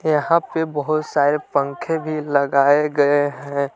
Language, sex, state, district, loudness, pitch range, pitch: Hindi, male, Jharkhand, Palamu, -19 LUFS, 140-155 Hz, 145 Hz